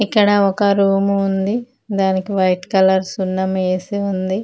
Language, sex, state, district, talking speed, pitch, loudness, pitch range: Telugu, female, Telangana, Mahabubabad, 135 wpm, 195 Hz, -17 LUFS, 190-200 Hz